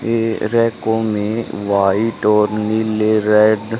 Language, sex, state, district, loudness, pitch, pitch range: Hindi, male, Haryana, Charkhi Dadri, -16 LUFS, 110 Hz, 105-115 Hz